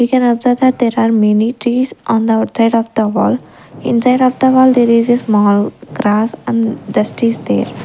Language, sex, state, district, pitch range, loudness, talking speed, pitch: English, female, Punjab, Kapurthala, 225-250 Hz, -13 LUFS, 205 wpm, 230 Hz